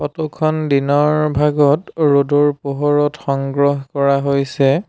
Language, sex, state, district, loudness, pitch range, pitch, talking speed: Assamese, male, Assam, Sonitpur, -16 LUFS, 140-150 Hz, 145 Hz, 100 wpm